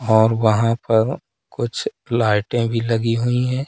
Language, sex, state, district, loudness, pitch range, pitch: Hindi, male, Madhya Pradesh, Katni, -19 LUFS, 110-120 Hz, 115 Hz